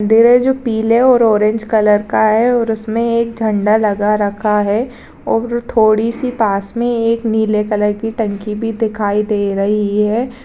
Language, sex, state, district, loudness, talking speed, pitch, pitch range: Hindi, female, Maharashtra, Dhule, -14 LUFS, 185 wpm, 220 Hz, 210-230 Hz